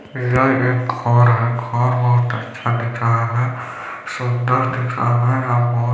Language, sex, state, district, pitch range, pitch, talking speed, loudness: Hindi, male, Chhattisgarh, Balrampur, 120-125 Hz, 120 Hz, 170 wpm, -18 LUFS